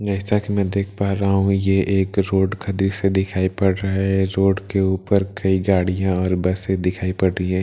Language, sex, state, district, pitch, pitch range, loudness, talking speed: Hindi, male, Bihar, Katihar, 95 Hz, 95-100 Hz, -20 LUFS, 220 wpm